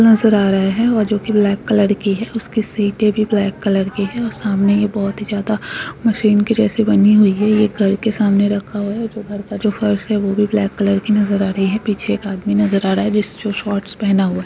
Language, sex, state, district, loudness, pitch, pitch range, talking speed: Hindi, female, Andhra Pradesh, Guntur, -16 LUFS, 205 Hz, 200-215 Hz, 255 wpm